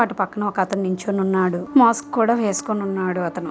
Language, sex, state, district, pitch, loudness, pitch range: Telugu, female, Andhra Pradesh, Guntur, 195 Hz, -20 LUFS, 185-225 Hz